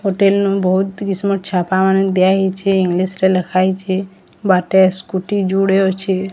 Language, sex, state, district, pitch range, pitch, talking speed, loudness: Odia, female, Odisha, Sambalpur, 185-195 Hz, 190 Hz, 95 wpm, -16 LUFS